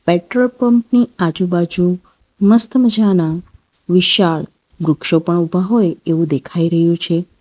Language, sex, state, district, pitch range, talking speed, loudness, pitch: Gujarati, female, Gujarat, Valsad, 165-215 Hz, 120 wpm, -14 LUFS, 175 Hz